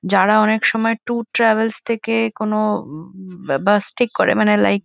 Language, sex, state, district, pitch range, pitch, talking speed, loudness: Bengali, female, West Bengal, Kolkata, 185-225 Hz, 215 Hz, 160 wpm, -17 LUFS